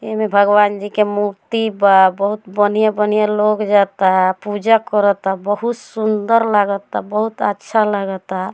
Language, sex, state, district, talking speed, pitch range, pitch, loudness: Bhojpuri, female, Bihar, Muzaffarpur, 140 wpm, 200-215 Hz, 205 Hz, -16 LUFS